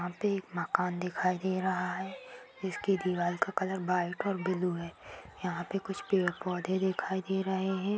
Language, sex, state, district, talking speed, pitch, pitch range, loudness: Hindi, female, Uttar Pradesh, Etah, 190 wpm, 190 Hz, 180-190 Hz, -33 LUFS